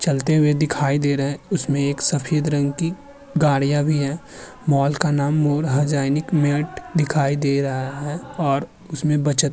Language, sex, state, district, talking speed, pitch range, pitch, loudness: Hindi, male, Uttar Pradesh, Muzaffarnagar, 175 wpm, 140-155 Hz, 145 Hz, -20 LUFS